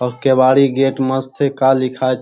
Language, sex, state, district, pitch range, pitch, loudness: Hindi, male, Bihar, Jamui, 130-135 Hz, 130 Hz, -15 LUFS